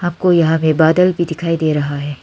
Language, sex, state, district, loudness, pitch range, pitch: Hindi, female, Arunachal Pradesh, Lower Dibang Valley, -15 LUFS, 155-170 Hz, 165 Hz